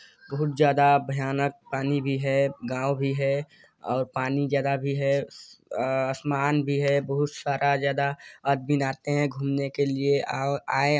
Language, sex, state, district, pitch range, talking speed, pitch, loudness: Hindi, male, Chhattisgarh, Sarguja, 135-140 Hz, 170 wpm, 140 Hz, -26 LUFS